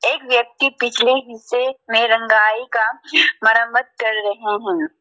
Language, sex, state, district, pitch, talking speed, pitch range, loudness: Hindi, female, Arunachal Pradesh, Lower Dibang Valley, 235 Hz, 130 wpm, 220-265 Hz, -17 LUFS